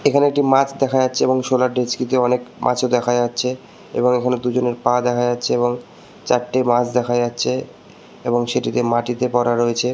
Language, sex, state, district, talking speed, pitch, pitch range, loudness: Bengali, male, West Bengal, Purulia, 175 wpm, 125 Hz, 120-125 Hz, -19 LUFS